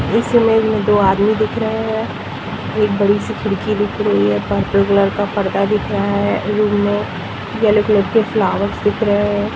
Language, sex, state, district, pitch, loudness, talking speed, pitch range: Hindi, female, Jharkhand, Sahebganj, 205 Hz, -16 LUFS, 195 wpm, 200-215 Hz